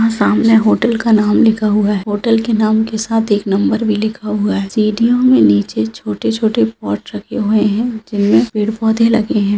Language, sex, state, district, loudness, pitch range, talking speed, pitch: Hindi, female, Andhra Pradesh, Anantapur, -14 LUFS, 135-220 Hz, 115 wpm, 210 Hz